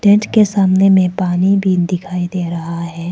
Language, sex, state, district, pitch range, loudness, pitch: Hindi, female, Arunachal Pradesh, Papum Pare, 175-195 Hz, -14 LUFS, 185 Hz